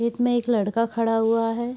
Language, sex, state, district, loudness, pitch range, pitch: Hindi, female, Bihar, Araria, -22 LUFS, 225-240 Hz, 230 Hz